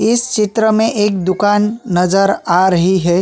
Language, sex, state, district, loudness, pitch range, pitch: Hindi, male, Chhattisgarh, Sukma, -14 LUFS, 185-220 Hz, 205 Hz